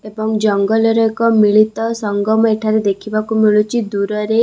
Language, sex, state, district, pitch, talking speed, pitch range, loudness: Odia, female, Odisha, Khordha, 215 Hz, 135 wpm, 210-225 Hz, -15 LUFS